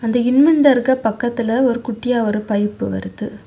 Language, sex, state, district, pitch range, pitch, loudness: Tamil, female, Tamil Nadu, Kanyakumari, 215-250 Hz, 235 Hz, -17 LUFS